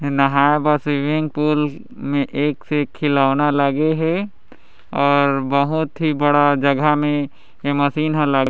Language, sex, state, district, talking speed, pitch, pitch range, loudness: Chhattisgarhi, male, Chhattisgarh, Raigarh, 150 wpm, 145 Hz, 140-150 Hz, -18 LUFS